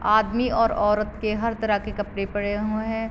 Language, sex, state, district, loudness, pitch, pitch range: Hindi, female, Uttar Pradesh, Varanasi, -24 LUFS, 215 Hz, 205-225 Hz